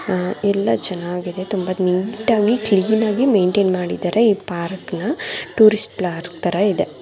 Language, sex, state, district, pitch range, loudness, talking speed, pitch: Kannada, female, Karnataka, Dharwad, 180-220 Hz, -19 LUFS, 155 wpm, 195 Hz